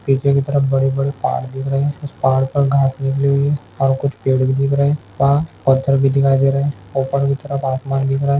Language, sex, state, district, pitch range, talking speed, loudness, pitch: Hindi, male, Chhattisgarh, Jashpur, 135-140 Hz, 255 wpm, -17 LUFS, 135 Hz